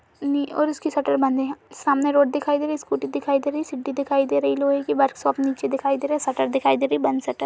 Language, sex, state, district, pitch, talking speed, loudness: Hindi, female, Uttar Pradesh, Budaun, 275 Hz, 295 wpm, -22 LUFS